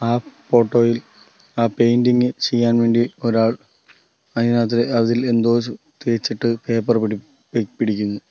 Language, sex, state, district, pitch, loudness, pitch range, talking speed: Malayalam, male, Kerala, Kollam, 115 Hz, -19 LUFS, 115-120 Hz, 110 wpm